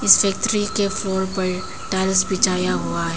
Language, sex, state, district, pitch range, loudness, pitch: Hindi, female, Arunachal Pradesh, Papum Pare, 185-195 Hz, -20 LUFS, 190 Hz